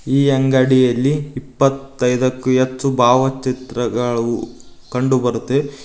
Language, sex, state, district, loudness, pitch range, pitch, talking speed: Kannada, male, Karnataka, Koppal, -17 LUFS, 125-135 Hz, 130 Hz, 80 wpm